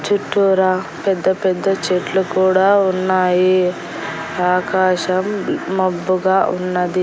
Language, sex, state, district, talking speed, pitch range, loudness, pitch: Telugu, female, Andhra Pradesh, Annamaya, 75 wpm, 180-190 Hz, -17 LUFS, 185 Hz